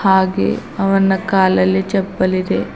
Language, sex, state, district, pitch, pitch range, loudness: Kannada, female, Karnataka, Bidar, 190 Hz, 185-195 Hz, -16 LUFS